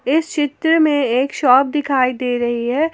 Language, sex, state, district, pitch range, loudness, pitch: Hindi, female, Jharkhand, Garhwa, 250-300 Hz, -16 LUFS, 275 Hz